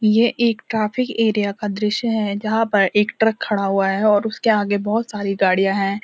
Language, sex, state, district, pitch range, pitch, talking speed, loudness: Hindi, female, Uttarakhand, Uttarkashi, 200-225 Hz, 210 Hz, 210 wpm, -19 LUFS